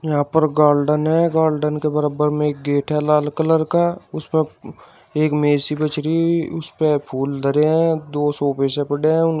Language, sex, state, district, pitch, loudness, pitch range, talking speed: Hindi, male, Uttar Pradesh, Shamli, 150 Hz, -19 LUFS, 145-160 Hz, 205 wpm